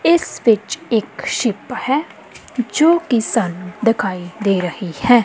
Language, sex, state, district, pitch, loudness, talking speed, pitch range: Punjabi, female, Punjab, Kapurthala, 230 Hz, -18 LUFS, 135 wpm, 195-250 Hz